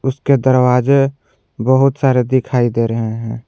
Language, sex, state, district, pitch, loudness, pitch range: Hindi, male, Jharkhand, Garhwa, 125 Hz, -15 LUFS, 115-135 Hz